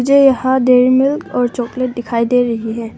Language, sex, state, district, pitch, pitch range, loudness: Hindi, female, Arunachal Pradesh, Longding, 250 Hz, 240-260 Hz, -14 LUFS